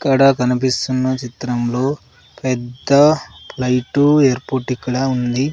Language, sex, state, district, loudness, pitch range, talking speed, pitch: Telugu, female, Andhra Pradesh, Sri Satya Sai, -17 LUFS, 125-135 Hz, 85 wpm, 130 Hz